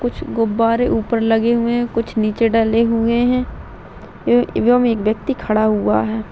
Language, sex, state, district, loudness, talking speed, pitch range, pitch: Hindi, female, Bihar, Madhepura, -17 LUFS, 170 wpm, 220-240 Hz, 230 Hz